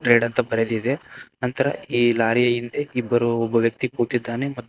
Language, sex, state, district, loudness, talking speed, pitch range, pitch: Kannada, male, Karnataka, Koppal, -22 LUFS, 115 wpm, 115-125 Hz, 120 Hz